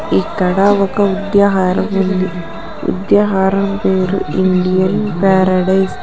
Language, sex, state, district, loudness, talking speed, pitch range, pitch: Telugu, female, Telangana, Hyderabad, -14 LUFS, 80 wpm, 185-200 Hz, 190 Hz